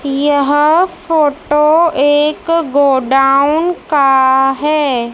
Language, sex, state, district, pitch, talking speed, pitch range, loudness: Hindi, female, Madhya Pradesh, Dhar, 290 Hz, 70 wpm, 270-310 Hz, -12 LUFS